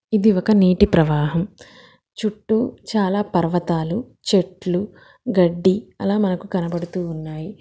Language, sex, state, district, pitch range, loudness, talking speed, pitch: Telugu, female, Telangana, Hyderabad, 175-210 Hz, -20 LUFS, 100 wpm, 190 Hz